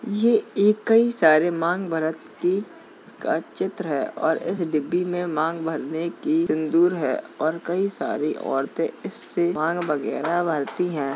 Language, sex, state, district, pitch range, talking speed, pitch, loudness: Hindi, male, Uttar Pradesh, Jalaun, 160-190 Hz, 150 wpm, 170 Hz, -23 LUFS